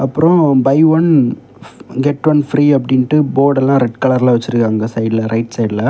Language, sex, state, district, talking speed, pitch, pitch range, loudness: Tamil, male, Tamil Nadu, Kanyakumari, 160 wpm, 135 Hz, 115-145 Hz, -13 LUFS